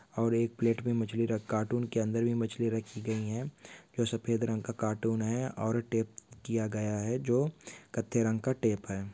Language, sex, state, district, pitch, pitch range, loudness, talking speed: Hindi, male, Andhra Pradesh, Visakhapatnam, 115 Hz, 110-120 Hz, -32 LUFS, 205 wpm